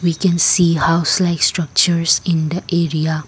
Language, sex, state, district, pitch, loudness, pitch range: English, female, Assam, Kamrup Metropolitan, 170 Hz, -15 LUFS, 160-175 Hz